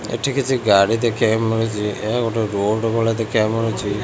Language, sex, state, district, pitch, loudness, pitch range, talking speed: Odia, male, Odisha, Khordha, 115 Hz, -19 LUFS, 105-115 Hz, 165 wpm